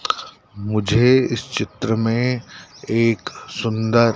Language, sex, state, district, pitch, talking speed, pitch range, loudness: Hindi, male, Madhya Pradesh, Dhar, 115 Hz, 85 wpm, 105-120 Hz, -20 LUFS